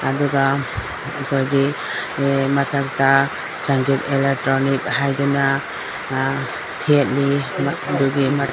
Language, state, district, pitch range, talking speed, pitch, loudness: Manipuri, Manipur, Imphal West, 135-140 Hz, 75 wpm, 140 Hz, -19 LUFS